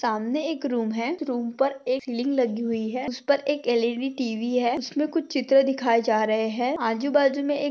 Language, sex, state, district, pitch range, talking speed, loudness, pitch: Hindi, female, Telangana, Nalgonda, 235-280 Hz, 210 wpm, -25 LUFS, 255 Hz